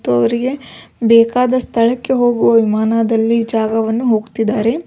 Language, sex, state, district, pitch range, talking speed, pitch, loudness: Kannada, female, Karnataka, Belgaum, 225-245 Hz, 110 wpm, 230 Hz, -14 LUFS